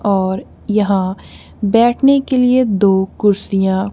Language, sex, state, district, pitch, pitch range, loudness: Hindi, female, Punjab, Kapurthala, 205 Hz, 190-240 Hz, -15 LUFS